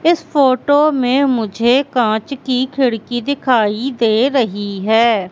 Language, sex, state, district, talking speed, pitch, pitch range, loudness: Hindi, female, Madhya Pradesh, Katni, 125 wpm, 250 Hz, 225-275 Hz, -15 LUFS